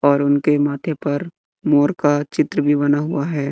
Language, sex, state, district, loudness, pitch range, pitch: Hindi, male, Bihar, West Champaran, -18 LUFS, 145-150 Hz, 145 Hz